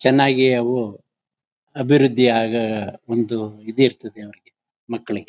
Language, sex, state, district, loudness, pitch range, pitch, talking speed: Kannada, male, Karnataka, Mysore, -19 LUFS, 110-130 Hz, 115 Hz, 90 wpm